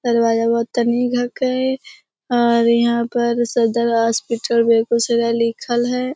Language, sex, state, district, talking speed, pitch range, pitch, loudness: Hindi, female, Bihar, Begusarai, 135 wpm, 235-245 Hz, 235 Hz, -18 LUFS